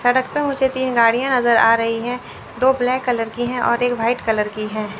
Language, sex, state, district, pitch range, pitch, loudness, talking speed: Hindi, female, Chandigarh, Chandigarh, 230-255 Hz, 245 Hz, -18 LUFS, 225 wpm